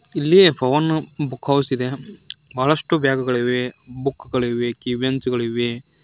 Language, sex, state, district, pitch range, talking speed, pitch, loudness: Kannada, male, Karnataka, Koppal, 125-150 Hz, 120 wpm, 130 Hz, -20 LUFS